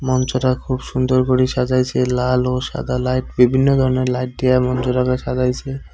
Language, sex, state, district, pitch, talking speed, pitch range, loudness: Bengali, male, West Bengal, Cooch Behar, 130 Hz, 150 wpm, 125-130 Hz, -18 LUFS